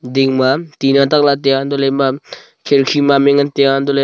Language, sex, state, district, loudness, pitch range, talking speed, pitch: Wancho, male, Arunachal Pradesh, Longding, -13 LUFS, 135-140 Hz, 250 wpm, 140 Hz